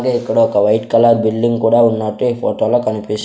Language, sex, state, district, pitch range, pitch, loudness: Telugu, male, Andhra Pradesh, Sri Satya Sai, 110-120 Hz, 115 Hz, -14 LUFS